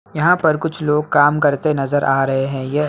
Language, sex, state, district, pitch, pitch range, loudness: Hindi, male, Bihar, Begusarai, 150 Hz, 135-155 Hz, -17 LUFS